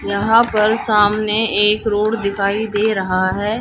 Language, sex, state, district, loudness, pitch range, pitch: Hindi, female, Haryana, Jhajjar, -16 LUFS, 200-220 Hz, 210 Hz